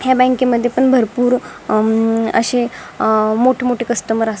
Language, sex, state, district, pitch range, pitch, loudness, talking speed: Marathi, female, Maharashtra, Dhule, 225-250 Hz, 240 Hz, -15 LUFS, 165 wpm